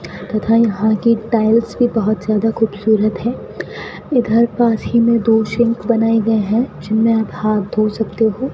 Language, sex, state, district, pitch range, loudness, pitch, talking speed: Hindi, female, Rajasthan, Bikaner, 215-230 Hz, -16 LUFS, 225 Hz, 175 wpm